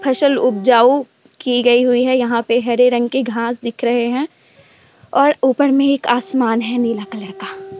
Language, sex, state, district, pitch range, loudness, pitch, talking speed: Hindi, female, Bihar, Vaishali, 235-270 Hz, -15 LUFS, 245 Hz, 185 wpm